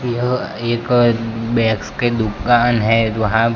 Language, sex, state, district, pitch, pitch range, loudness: Hindi, male, Gujarat, Gandhinagar, 115 Hz, 115-120 Hz, -17 LUFS